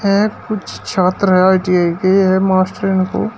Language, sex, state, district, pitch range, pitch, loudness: Hindi, male, Uttar Pradesh, Shamli, 185-200 Hz, 190 Hz, -14 LUFS